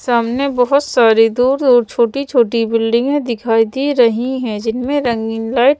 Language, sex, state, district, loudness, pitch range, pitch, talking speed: Hindi, female, Madhya Pradesh, Bhopal, -15 LUFS, 230-265 Hz, 240 Hz, 165 wpm